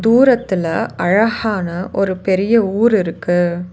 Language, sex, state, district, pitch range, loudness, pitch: Tamil, female, Tamil Nadu, Nilgiris, 180-225 Hz, -16 LUFS, 195 Hz